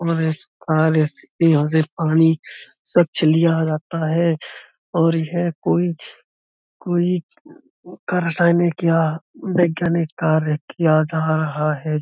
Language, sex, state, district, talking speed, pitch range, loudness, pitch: Hindi, male, Uttar Pradesh, Budaun, 100 wpm, 155-170 Hz, -19 LUFS, 160 Hz